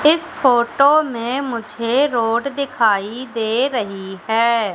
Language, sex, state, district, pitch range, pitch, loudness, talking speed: Hindi, female, Madhya Pradesh, Katni, 225-275 Hz, 235 Hz, -18 LUFS, 115 wpm